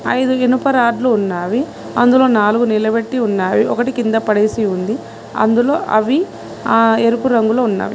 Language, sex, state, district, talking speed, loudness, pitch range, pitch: Telugu, female, Telangana, Mahabubabad, 135 wpm, -15 LUFS, 215-250 Hz, 230 Hz